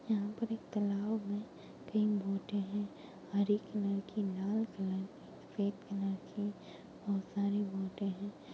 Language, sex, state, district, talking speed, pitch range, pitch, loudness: Hindi, female, Chhattisgarh, Jashpur, 140 wpm, 195-210 Hz, 205 Hz, -37 LUFS